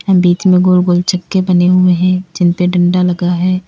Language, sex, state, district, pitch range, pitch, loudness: Hindi, female, Uttar Pradesh, Lalitpur, 175-185 Hz, 180 Hz, -12 LUFS